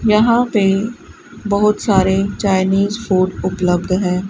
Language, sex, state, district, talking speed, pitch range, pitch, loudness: Hindi, female, Rajasthan, Bikaner, 110 wpm, 185-210 Hz, 195 Hz, -16 LUFS